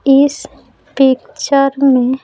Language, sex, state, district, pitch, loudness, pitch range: Hindi, female, Bihar, Patna, 270 Hz, -13 LUFS, 265-275 Hz